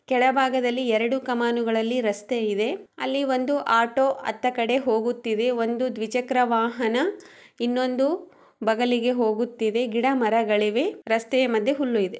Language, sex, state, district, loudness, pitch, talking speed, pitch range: Kannada, female, Karnataka, Chamarajanagar, -24 LUFS, 245 Hz, 110 wpm, 225-255 Hz